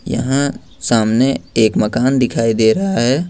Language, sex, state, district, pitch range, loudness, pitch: Hindi, male, Jharkhand, Ranchi, 115-135 Hz, -15 LUFS, 125 Hz